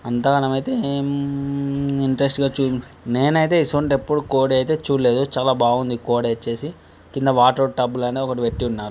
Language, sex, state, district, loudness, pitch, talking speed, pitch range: Telugu, male, Telangana, Karimnagar, -20 LUFS, 135 Hz, 155 wpm, 125-140 Hz